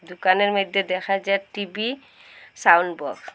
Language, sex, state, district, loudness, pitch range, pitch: Bengali, female, Assam, Hailakandi, -22 LUFS, 185-200 Hz, 195 Hz